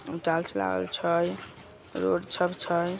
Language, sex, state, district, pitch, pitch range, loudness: Magahi, male, Bihar, Samastipur, 170 Hz, 165-175 Hz, -28 LUFS